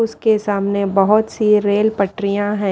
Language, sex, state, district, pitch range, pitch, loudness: Hindi, female, Haryana, Rohtak, 200-215 Hz, 205 Hz, -16 LUFS